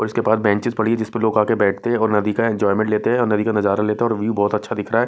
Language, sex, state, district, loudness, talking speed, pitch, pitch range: Hindi, male, Punjab, Kapurthala, -19 LUFS, 355 wpm, 110 Hz, 105-115 Hz